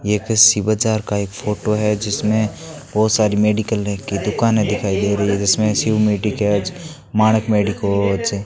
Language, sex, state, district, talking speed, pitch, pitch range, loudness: Hindi, male, Rajasthan, Bikaner, 170 wpm, 105 Hz, 100-110 Hz, -17 LUFS